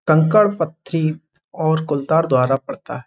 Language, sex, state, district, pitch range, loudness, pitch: Hindi, male, Uttar Pradesh, Budaun, 145-165 Hz, -18 LUFS, 155 Hz